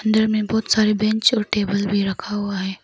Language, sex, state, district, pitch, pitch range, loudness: Hindi, female, Arunachal Pradesh, Lower Dibang Valley, 210 Hz, 200-220 Hz, -20 LUFS